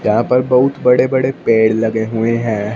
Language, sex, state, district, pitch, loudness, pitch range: Hindi, male, Punjab, Fazilka, 115 Hz, -14 LUFS, 110-125 Hz